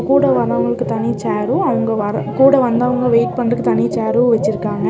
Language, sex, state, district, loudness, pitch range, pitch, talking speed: Tamil, female, Tamil Nadu, Nilgiris, -16 LUFS, 205-245 Hz, 230 Hz, 160 wpm